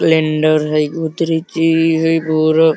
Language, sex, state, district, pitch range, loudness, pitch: Hindi, male, Bihar, Sitamarhi, 155-165 Hz, -15 LUFS, 160 Hz